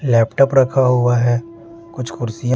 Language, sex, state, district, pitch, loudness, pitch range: Hindi, male, Bihar, Patna, 125 Hz, -16 LUFS, 120-135 Hz